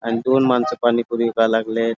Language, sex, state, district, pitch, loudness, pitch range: Marathi, male, Karnataka, Belgaum, 115 Hz, -19 LUFS, 115-125 Hz